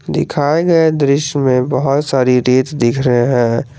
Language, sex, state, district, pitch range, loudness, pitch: Hindi, male, Jharkhand, Garhwa, 125-145 Hz, -14 LUFS, 135 Hz